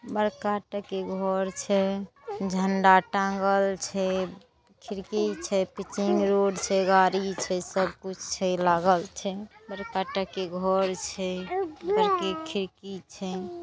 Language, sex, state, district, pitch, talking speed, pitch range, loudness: Maithili, female, Bihar, Saharsa, 195 Hz, 110 wpm, 190-200 Hz, -27 LUFS